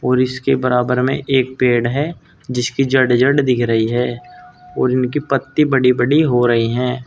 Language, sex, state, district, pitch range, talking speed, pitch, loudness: Hindi, male, Uttar Pradesh, Saharanpur, 125-135 Hz, 180 wpm, 130 Hz, -16 LUFS